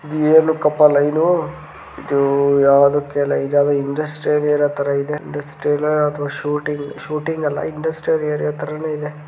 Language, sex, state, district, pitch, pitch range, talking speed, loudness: Kannada, male, Karnataka, Gulbarga, 150 Hz, 145-150 Hz, 140 wpm, -18 LUFS